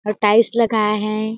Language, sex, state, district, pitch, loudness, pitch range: Hindi, female, Chhattisgarh, Balrampur, 215 Hz, -17 LUFS, 210-225 Hz